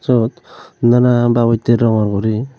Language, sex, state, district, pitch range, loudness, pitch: Chakma, male, Tripura, Unakoti, 115-125 Hz, -14 LUFS, 120 Hz